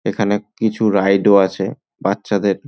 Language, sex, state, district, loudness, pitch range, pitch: Bengali, male, West Bengal, North 24 Parganas, -17 LUFS, 100-110 Hz, 100 Hz